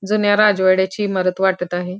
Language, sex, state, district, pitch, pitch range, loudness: Marathi, female, Maharashtra, Pune, 190 Hz, 185-205 Hz, -17 LUFS